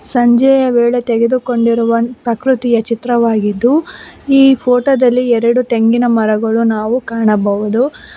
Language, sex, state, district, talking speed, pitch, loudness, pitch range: Kannada, female, Karnataka, Bangalore, 95 wpm, 240 Hz, -12 LUFS, 230-250 Hz